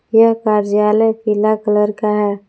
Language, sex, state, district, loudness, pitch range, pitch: Hindi, female, Jharkhand, Palamu, -15 LUFS, 210-220 Hz, 210 Hz